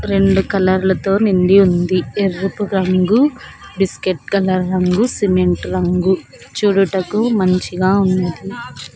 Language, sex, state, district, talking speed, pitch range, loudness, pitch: Telugu, female, Andhra Pradesh, Sri Satya Sai, 100 wpm, 185-195 Hz, -16 LUFS, 190 Hz